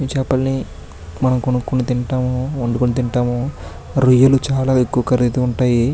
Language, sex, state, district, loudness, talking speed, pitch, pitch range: Telugu, male, Andhra Pradesh, Chittoor, -17 LUFS, 110 wpm, 125 Hz, 125-130 Hz